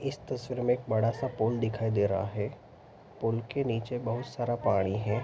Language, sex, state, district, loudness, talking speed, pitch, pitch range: Hindi, male, Bihar, Araria, -31 LUFS, 205 wpm, 115 Hz, 105-125 Hz